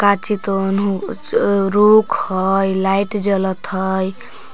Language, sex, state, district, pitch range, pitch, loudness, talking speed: Magahi, female, Jharkhand, Palamu, 190-205 Hz, 195 Hz, -17 LUFS, 120 wpm